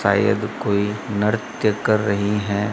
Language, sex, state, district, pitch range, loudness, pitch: Hindi, male, Rajasthan, Bikaner, 100-105 Hz, -21 LUFS, 105 Hz